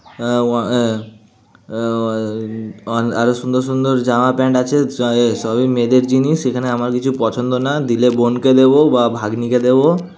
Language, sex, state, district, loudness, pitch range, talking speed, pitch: Bengali, male, West Bengal, Jhargram, -15 LUFS, 115-130 Hz, 145 wpm, 120 Hz